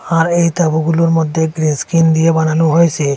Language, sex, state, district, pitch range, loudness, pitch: Bengali, male, Assam, Hailakandi, 160-165 Hz, -13 LUFS, 160 Hz